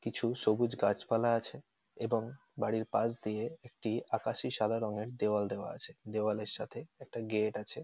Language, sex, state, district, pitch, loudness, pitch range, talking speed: Bengali, male, West Bengal, North 24 Parganas, 110 Hz, -35 LUFS, 105-120 Hz, 155 wpm